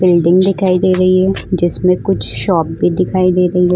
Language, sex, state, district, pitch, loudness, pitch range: Hindi, female, Goa, North and South Goa, 180 Hz, -13 LUFS, 175-185 Hz